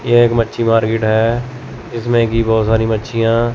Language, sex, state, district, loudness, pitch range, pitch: Hindi, male, Chandigarh, Chandigarh, -15 LUFS, 115-120 Hz, 115 Hz